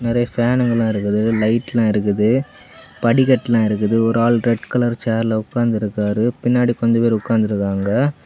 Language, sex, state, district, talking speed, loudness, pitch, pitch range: Tamil, male, Tamil Nadu, Kanyakumari, 150 wpm, -17 LUFS, 115 Hz, 110-120 Hz